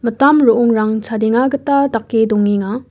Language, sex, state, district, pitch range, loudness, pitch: Garo, female, Meghalaya, West Garo Hills, 220-265 Hz, -14 LUFS, 230 Hz